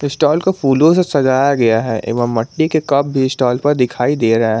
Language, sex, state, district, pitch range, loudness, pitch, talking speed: Hindi, male, Jharkhand, Garhwa, 120-145 Hz, -14 LUFS, 135 Hz, 210 wpm